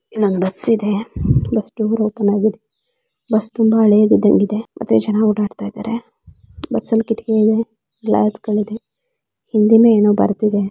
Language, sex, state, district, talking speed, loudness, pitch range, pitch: Kannada, female, Karnataka, Belgaum, 110 wpm, -16 LUFS, 210-225 Hz, 215 Hz